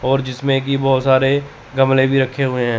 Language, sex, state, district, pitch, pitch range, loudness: Hindi, male, Chandigarh, Chandigarh, 135 Hz, 130-135 Hz, -16 LUFS